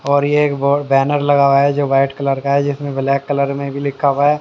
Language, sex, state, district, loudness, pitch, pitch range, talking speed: Hindi, male, Haryana, Jhajjar, -16 LUFS, 140 Hz, 140-145 Hz, 270 wpm